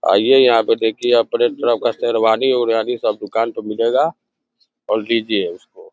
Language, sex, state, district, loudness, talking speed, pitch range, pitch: Hindi, male, Uttar Pradesh, Deoria, -17 LUFS, 160 wpm, 115-125 Hz, 115 Hz